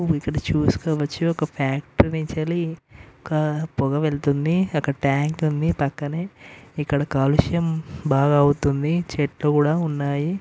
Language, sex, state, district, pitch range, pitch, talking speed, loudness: Telugu, male, Telangana, Karimnagar, 140-160 Hz, 150 Hz, 105 wpm, -22 LUFS